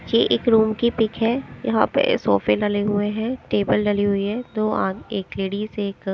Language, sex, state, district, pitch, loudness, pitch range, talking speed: Hindi, female, Himachal Pradesh, Shimla, 210 Hz, -21 LUFS, 200-225 Hz, 205 wpm